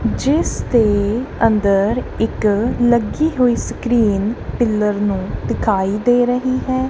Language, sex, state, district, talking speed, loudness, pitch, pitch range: Punjabi, female, Punjab, Kapurthala, 105 wpm, -17 LUFS, 235 Hz, 205-245 Hz